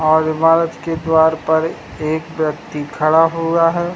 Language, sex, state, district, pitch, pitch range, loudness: Hindi, male, Uttar Pradesh, Muzaffarnagar, 160 Hz, 155-165 Hz, -16 LUFS